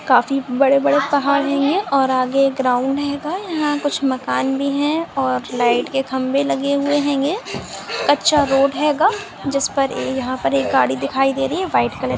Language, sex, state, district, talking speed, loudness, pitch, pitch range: Hindi, female, Rajasthan, Nagaur, 190 wpm, -18 LUFS, 275 Hz, 260-290 Hz